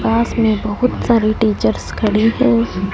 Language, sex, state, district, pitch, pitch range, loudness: Hindi, female, Punjab, Fazilka, 220 Hz, 210-230 Hz, -16 LUFS